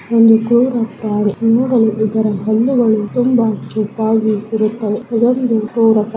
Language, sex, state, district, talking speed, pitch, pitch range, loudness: Kannada, female, Karnataka, Chamarajanagar, 105 wpm, 225 Hz, 215-235 Hz, -14 LUFS